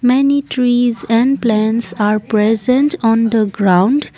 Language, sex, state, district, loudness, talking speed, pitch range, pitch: English, female, Assam, Kamrup Metropolitan, -14 LUFS, 130 wpm, 215-255 Hz, 230 Hz